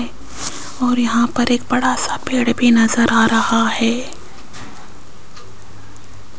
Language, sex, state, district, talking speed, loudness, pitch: Hindi, female, Rajasthan, Jaipur, 110 wpm, -16 LUFS, 230 Hz